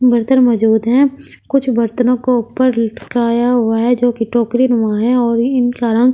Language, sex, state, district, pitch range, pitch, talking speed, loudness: Hindi, female, Delhi, New Delhi, 230-250 Hz, 240 Hz, 175 wpm, -14 LUFS